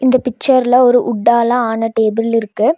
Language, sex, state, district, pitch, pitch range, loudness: Tamil, female, Tamil Nadu, Nilgiris, 235 Hz, 225-250 Hz, -13 LUFS